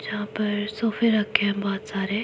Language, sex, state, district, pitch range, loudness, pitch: Hindi, female, Himachal Pradesh, Shimla, 205-215 Hz, -25 LUFS, 210 Hz